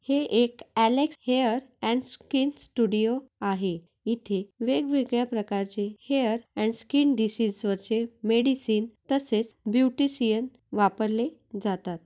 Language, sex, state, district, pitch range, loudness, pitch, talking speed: Marathi, female, Maharashtra, Nagpur, 215-260 Hz, -27 LUFS, 230 Hz, 105 wpm